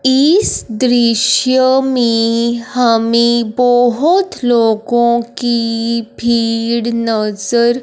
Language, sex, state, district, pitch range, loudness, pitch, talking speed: Hindi, female, Punjab, Fazilka, 230-250 Hz, -13 LUFS, 235 Hz, 75 wpm